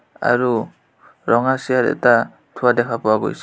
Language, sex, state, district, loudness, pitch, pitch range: Assamese, male, Assam, Kamrup Metropolitan, -18 LUFS, 120 Hz, 115-125 Hz